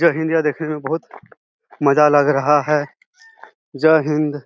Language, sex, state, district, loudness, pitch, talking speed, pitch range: Hindi, male, Bihar, Jahanabad, -17 LUFS, 150 Hz, 160 wpm, 150-165 Hz